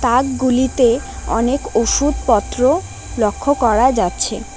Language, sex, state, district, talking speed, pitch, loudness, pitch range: Bengali, female, West Bengal, Alipurduar, 90 wpm, 255 Hz, -16 LUFS, 235-270 Hz